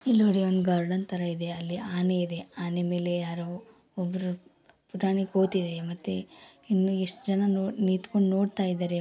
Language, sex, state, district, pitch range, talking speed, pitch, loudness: Kannada, female, Karnataka, Gulbarga, 175-195 Hz, 155 wpm, 185 Hz, -28 LUFS